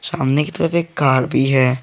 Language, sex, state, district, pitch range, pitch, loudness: Hindi, male, Jharkhand, Garhwa, 130-160 Hz, 135 Hz, -17 LUFS